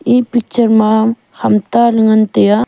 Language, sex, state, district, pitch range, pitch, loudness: Wancho, female, Arunachal Pradesh, Longding, 215-235 Hz, 225 Hz, -12 LUFS